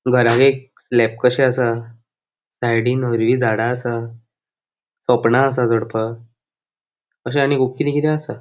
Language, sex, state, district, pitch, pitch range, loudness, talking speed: Konkani, male, Goa, North and South Goa, 120 Hz, 115-130 Hz, -18 LUFS, 130 wpm